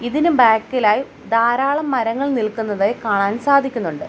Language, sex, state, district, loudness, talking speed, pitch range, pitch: Malayalam, female, Kerala, Kollam, -17 LUFS, 115 wpm, 215-270 Hz, 230 Hz